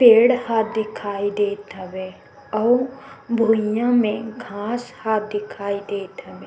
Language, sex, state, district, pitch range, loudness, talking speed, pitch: Chhattisgarhi, female, Chhattisgarh, Sukma, 205-235 Hz, -22 LUFS, 120 wpm, 220 Hz